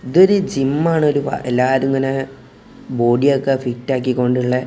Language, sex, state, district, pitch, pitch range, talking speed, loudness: Malayalam, male, Kerala, Kozhikode, 135 Hz, 125-140 Hz, 155 wpm, -17 LUFS